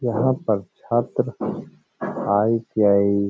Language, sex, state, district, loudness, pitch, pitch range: Hindi, male, Uttar Pradesh, Hamirpur, -22 LUFS, 110 Hz, 100-120 Hz